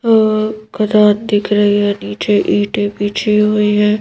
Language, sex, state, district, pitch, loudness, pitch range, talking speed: Hindi, female, Madhya Pradesh, Bhopal, 210 Hz, -14 LUFS, 205-215 Hz, 150 wpm